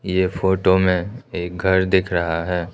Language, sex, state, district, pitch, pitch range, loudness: Hindi, male, Arunachal Pradesh, Lower Dibang Valley, 95 Hz, 90-95 Hz, -20 LUFS